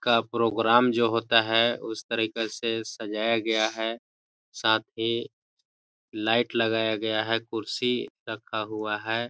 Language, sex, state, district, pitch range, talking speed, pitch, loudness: Hindi, male, Chhattisgarh, Balrampur, 110-115 Hz, 140 wpm, 115 Hz, -26 LUFS